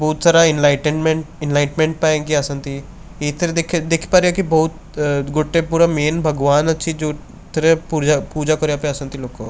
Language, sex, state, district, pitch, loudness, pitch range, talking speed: Odia, male, Odisha, Khordha, 155 Hz, -17 LUFS, 145-165 Hz, 120 wpm